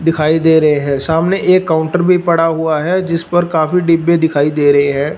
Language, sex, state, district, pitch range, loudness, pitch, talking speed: Hindi, male, Punjab, Fazilka, 150-175 Hz, -13 LUFS, 160 Hz, 220 wpm